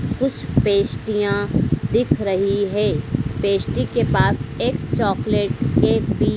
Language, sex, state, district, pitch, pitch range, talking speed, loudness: Hindi, female, Madhya Pradesh, Dhar, 200 Hz, 190-205 Hz, 115 wpm, -20 LUFS